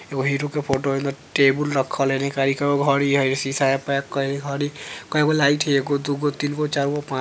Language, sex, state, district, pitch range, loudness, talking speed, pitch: Bajjika, female, Bihar, Vaishali, 135-145 Hz, -21 LUFS, 225 wpm, 140 Hz